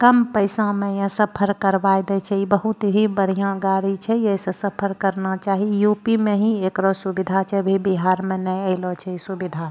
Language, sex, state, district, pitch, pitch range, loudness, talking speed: Angika, female, Bihar, Bhagalpur, 195 Hz, 190-205 Hz, -21 LUFS, 200 wpm